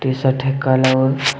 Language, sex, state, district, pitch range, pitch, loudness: Hindi, male, Jharkhand, Deoghar, 130-135 Hz, 130 Hz, -16 LUFS